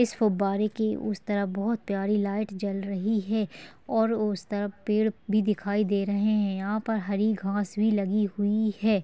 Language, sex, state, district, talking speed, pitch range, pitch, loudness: Hindi, female, Chhattisgarh, Balrampur, 185 wpm, 200-215 Hz, 210 Hz, -27 LUFS